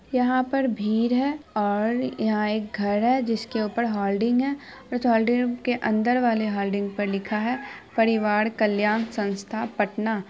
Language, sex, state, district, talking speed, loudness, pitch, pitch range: Hindi, female, Bihar, Araria, 170 wpm, -24 LUFS, 225 Hz, 210-245 Hz